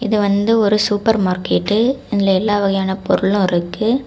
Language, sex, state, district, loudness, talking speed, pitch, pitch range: Tamil, female, Tamil Nadu, Kanyakumari, -16 LUFS, 145 wpm, 205 Hz, 190-220 Hz